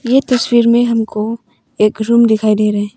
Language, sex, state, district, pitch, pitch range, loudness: Hindi, female, Arunachal Pradesh, Papum Pare, 230 Hz, 215-240 Hz, -13 LUFS